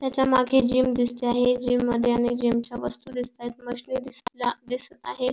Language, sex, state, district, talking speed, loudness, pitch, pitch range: Marathi, female, Maharashtra, Pune, 180 wpm, -25 LUFS, 245 Hz, 245-255 Hz